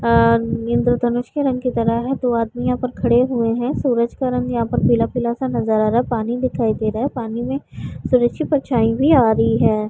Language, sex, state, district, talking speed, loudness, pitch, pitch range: Hindi, female, Bihar, Vaishali, 240 wpm, -18 LUFS, 240 Hz, 225-250 Hz